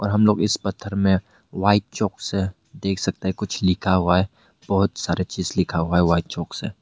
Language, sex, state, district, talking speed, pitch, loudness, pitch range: Hindi, male, Meghalaya, West Garo Hills, 220 wpm, 95 Hz, -22 LUFS, 90-105 Hz